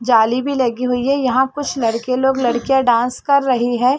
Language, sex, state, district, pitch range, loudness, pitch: Hindi, female, Chhattisgarh, Bastar, 240-265 Hz, -17 LUFS, 255 Hz